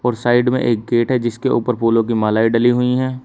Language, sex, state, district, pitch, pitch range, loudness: Hindi, male, Uttar Pradesh, Shamli, 120 Hz, 115-125 Hz, -16 LUFS